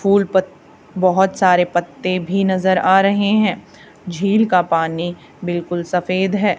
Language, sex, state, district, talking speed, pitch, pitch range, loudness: Hindi, female, Haryana, Charkhi Dadri, 145 wpm, 185 Hz, 175-195 Hz, -17 LUFS